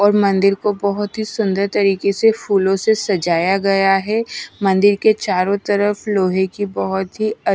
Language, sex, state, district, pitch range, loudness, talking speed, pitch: Hindi, female, Odisha, Nuapada, 195-210 Hz, -17 LUFS, 165 wpm, 200 Hz